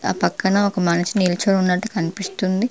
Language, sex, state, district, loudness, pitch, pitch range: Telugu, female, Telangana, Mahabubabad, -20 LUFS, 190 Hz, 180-200 Hz